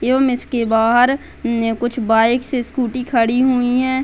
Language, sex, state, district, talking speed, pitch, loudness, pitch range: Hindi, female, Bihar, Gaya, 135 wpm, 245 Hz, -17 LUFS, 235-255 Hz